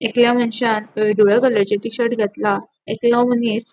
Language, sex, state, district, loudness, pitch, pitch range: Konkani, female, Goa, North and South Goa, -17 LUFS, 230 Hz, 215-240 Hz